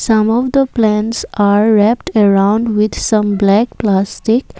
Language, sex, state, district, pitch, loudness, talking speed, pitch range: English, female, Assam, Kamrup Metropolitan, 215 Hz, -13 LUFS, 145 wpm, 205-230 Hz